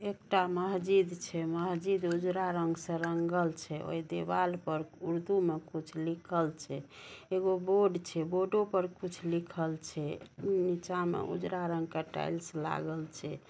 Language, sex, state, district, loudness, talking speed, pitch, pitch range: Maithili, female, Bihar, Samastipur, -34 LUFS, 145 wpm, 170 Hz, 160-185 Hz